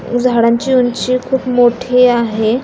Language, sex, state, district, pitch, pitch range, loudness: Marathi, female, Maharashtra, Pune, 245 Hz, 235-250 Hz, -13 LUFS